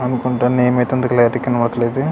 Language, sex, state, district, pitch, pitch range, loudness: Telugu, male, Andhra Pradesh, Krishna, 125 Hz, 120-125 Hz, -16 LUFS